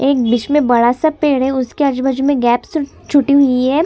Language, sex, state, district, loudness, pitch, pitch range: Hindi, female, Chhattisgarh, Sukma, -14 LUFS, 275 Hz, 255-285 Hz